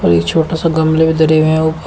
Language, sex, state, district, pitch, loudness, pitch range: Hindi, male, Uttar Pradesh, Shamli, 160 Hz, -12 LUFS, 155-160 Hz